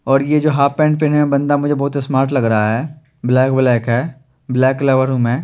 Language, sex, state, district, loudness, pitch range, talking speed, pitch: Hindi, male, Chandigarh, Chandigarh, -15 LUFS, 130-145 Hz, 230 wpm, 135 Hz